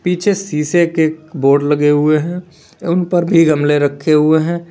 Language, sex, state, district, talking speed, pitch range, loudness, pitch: Hindi, male, Uttar Pradesh, Lalitpur, 180 wpm, 150-175 Hz, -14 LUFS, 160 Hz